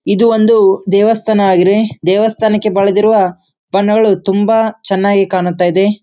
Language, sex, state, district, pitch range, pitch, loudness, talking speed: Kannada, male, Karnataka, Bijapur, 195-220 Hz, 200 Hz, -11 LUFS, 100 wpm